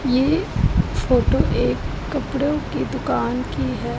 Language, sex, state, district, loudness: Hindi, female, Punjab, Pathankot, -21 LUFS